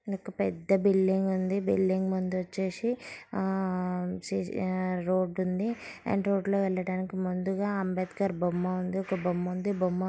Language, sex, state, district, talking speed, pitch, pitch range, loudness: Telugu, female, Andhra Pradesh, Srikakulam, 120 wpm, 190 Hz, 185-195 Hz, -30 LUFS